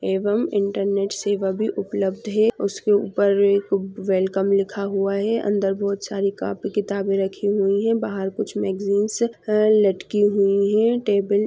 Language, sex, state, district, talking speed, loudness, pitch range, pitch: Hindi, female, Bihar, Madhepura, 155 wpm, -21 LUFS, 195-210 Hz, 200 Hz